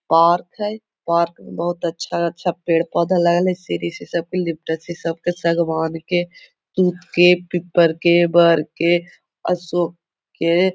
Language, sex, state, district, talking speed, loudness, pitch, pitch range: Magahi, female, Bihar, Gaya, 150 wpm, -19 LUFS, 170 Hz, 170-175 Hz